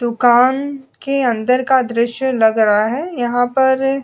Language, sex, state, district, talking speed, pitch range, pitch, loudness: Hindi, female, Goa, North and South Goa, 150 wpm, 240-265 Hz, 250 Hz, -15 LUFS